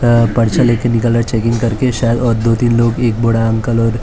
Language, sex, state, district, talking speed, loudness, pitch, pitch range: Hindi, male, Maharashtra, Mumbai Suburban, 225 wpm, -13 LUFS, 115 Hz, 115-120 Hz